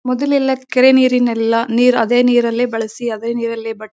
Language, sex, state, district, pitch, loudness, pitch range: Kannada, female, Karnataka, Bellary, 240 Hz, -15 LUFS, 230-255 Hz